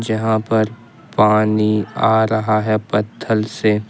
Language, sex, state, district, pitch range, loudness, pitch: Hindi, male, Jharkhand, Ranchi, 105-110 Hz, -17 LUFS, 110 Hz